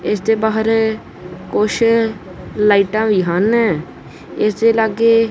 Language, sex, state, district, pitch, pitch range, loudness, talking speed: Punjabi, male, Punjab, Kapurthala, 220 Hz, 210-225 Hz, -15 LUFS, 115 wpm